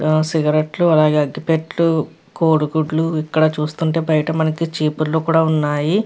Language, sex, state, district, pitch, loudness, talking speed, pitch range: Telugu, female, Andhra Pradesh, Krishna, 155 Hz, -17 LUFS, 120 wpm, 155-160 Hz